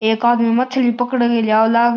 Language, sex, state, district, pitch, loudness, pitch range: Marwari, male, Rajasthan, Churu, 235 Hz, -16 LUFS, 230-245 Hz